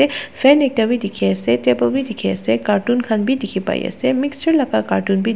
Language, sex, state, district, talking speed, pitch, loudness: Nagamese, female, Nagaland, Dimapur, 215 wpm, 225 Hz, -17 LUFS